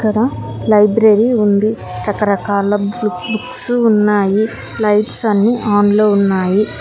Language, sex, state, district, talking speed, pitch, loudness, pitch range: Telugu, female, Telangana, Hyderabad, 95 wpm, 210 Hz, -14 LUFS, 205-220 Hz